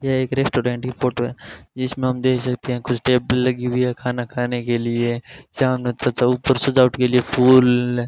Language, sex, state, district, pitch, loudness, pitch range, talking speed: Hindi, male, Rajasthan, Bikaner, 125 Hz, -19 LUFS, 125-130 Hz, 210 wpm